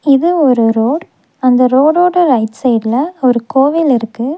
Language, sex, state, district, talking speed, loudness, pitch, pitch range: Tamil, female, Tamil Nadu, Nilgiris, 135 wpm, -12 LUFS, 265 Hz, 240-305 Hz